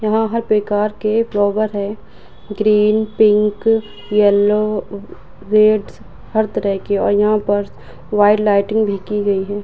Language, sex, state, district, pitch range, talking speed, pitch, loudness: Hindi, female, Uttar Pradesh, Budaun, 205-215 Hz, 135 wpm, 210 Hz, -16 LUFS